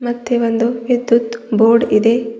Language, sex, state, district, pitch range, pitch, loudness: Kannada, female, Karnataka, Bidar, 230-240 Hz, 235 Hz, -15 LUFS